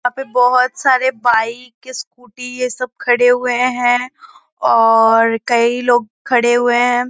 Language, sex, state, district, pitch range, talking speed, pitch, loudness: Hindi, female, Uttar Pradesh, Gorakhpur, 240-250 Hz, 145 wpm, 245 Hz, -14 LUFS